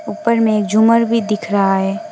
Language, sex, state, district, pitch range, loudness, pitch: Hindi, female, West Bengal, Alipurduar, 210-230 Hz, -15 LUFS, 215 Hz